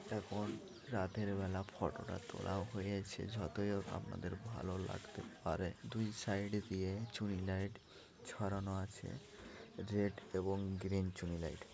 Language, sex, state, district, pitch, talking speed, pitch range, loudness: Bengali, male, West Bengal, Malda, 100 Hz, 135 wpm, 95-105 Hz, -43 LUFS